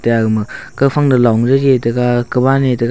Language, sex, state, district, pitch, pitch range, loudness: Wancho, male, Arunachal Pradesh, Longding, 125 Hz, 115-135 Hz, -13 LUFS